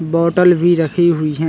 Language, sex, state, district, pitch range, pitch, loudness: Hindi, male, Chhattisgarh, Bilaspur, 160-175 Hz, 170 Hz, -13 LUFS